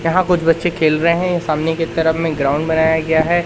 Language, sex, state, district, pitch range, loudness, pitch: Hindi, male, Madhya Pradesh, Katni, 160-170 Hz, -16 LUFS, 165 Hz